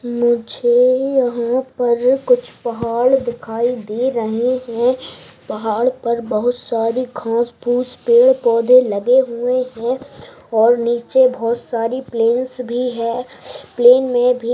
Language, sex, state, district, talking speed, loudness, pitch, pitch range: Hindi, female, Bihar, Bhagalpur, 125 wpm, -17 LUFS, 245 Hz, 235-255 Hz